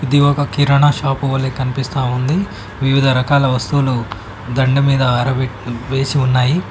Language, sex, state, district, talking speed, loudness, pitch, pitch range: Telugu, male, Telangana, Mahabubabad, 135 wpm, -16 LUFS, 135 Hz, 125-140 Hz